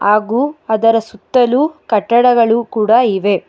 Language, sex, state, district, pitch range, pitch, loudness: Kannada, female, Karnataka, Bangalore, 215-245 Hz, 225 Hz, -13 LUFS